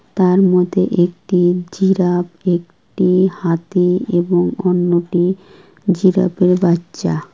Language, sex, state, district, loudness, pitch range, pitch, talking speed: Bengali, female, West Bengal, Kolkata, -16 LUFS, 175-185 Hz, 180 Hz, 80 wpm